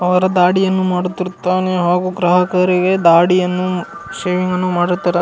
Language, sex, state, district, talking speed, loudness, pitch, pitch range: Kannada, male, Karnataka, Gulbarga, 115 wpm, -15 LUFS, 180 Hz, 180-185 Hz